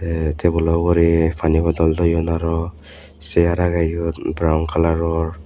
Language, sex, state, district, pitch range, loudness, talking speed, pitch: Chakma, male, Tripura, Unakoti, 80-85 Hz, -18 LUFS, 130 wpm, 80 Hz